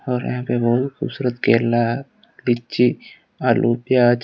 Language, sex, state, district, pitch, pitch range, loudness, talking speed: Hindi, male, Odisha, Khordha, 120 Hz, 120-125 Hz, -20 LUFS, 125 wpm